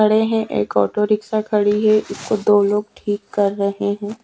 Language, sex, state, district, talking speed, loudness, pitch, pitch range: Hindi, female, Haryana, Charkhi Dadri, 200 wpm, -18 LUFS, 210 Hz, 205-215 Hz